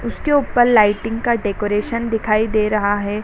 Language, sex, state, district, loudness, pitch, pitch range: Hindi, female, Bihar, Sitamarhi, -17 LUFS, 220 Hz, 210-235 Hz